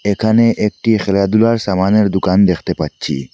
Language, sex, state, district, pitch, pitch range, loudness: Bengali, male, Assam, Hailakandi, 100 Hz, 95-110 Hz, -14 LUFS